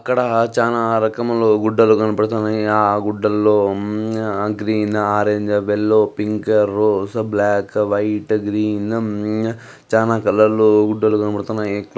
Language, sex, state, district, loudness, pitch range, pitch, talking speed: Telugu, male, Andhra Pradesh, Guntur, -17 LUFS, 105-110 Hz, 105 Hz, 95 wpm